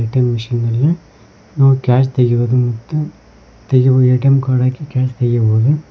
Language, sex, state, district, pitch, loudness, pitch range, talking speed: Kannada, male, Karnataka, Koppal, 130 Hz, -14 LUFS, 120-135 Hz, 110 wpm